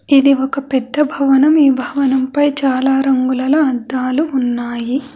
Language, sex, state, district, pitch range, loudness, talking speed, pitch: Telugu, female, Telangana, Hyderabad, 260-280 Hz, -15 LUFS, 130 wpm, 270 Hz